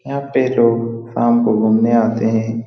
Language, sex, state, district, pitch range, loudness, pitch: Hindi, male, Bihar, Saran, 115-120 Hz, -16 LUFS, 115 Hz